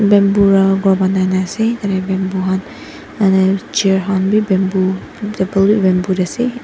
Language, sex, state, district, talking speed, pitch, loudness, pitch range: Nagamese, female, Nagaland, Dimapur, 160 wpm, 195 Hz, -15 LUFS, 190-205 Hz